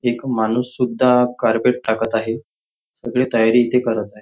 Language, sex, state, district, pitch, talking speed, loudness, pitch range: Marathi, male, Maharashtra, Nagpur, 120 Hz, 155 wpm, -18 LUFS, 115-125 Hz